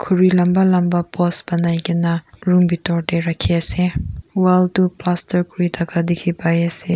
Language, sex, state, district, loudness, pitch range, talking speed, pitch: Nagamese, female, Nagaland, Kohima, -18 LUFS, 170-180 Hz, 165 wpm, 175 Hz